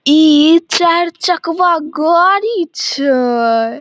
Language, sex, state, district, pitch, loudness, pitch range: Maithili, female, Bihar, Samastipur, 325 Hz, -12 LUFS, 280-345 Hz